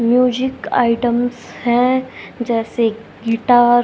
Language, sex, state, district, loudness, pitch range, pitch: Hindi, female, Haryana, Rohtak, -17 LUFS, 230-245 Hz, 240 Hz